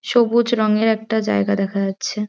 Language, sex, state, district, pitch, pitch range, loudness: Bengali, female, West Bengal, Jhargram, 215 Hz, 195-230 Hz, -19 LUFS